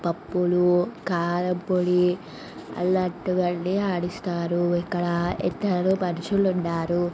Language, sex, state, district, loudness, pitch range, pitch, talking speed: Telugu, female, Andhra Pradesh, Visakhapatnam, -24 LUFS, 175-180 Hz, 180 Hz, 85 wpm